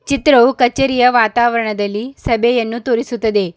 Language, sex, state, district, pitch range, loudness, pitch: Kannada, female, Karnataka, Bidar, 225-250 Hz, -14 LUFS, 240 Hz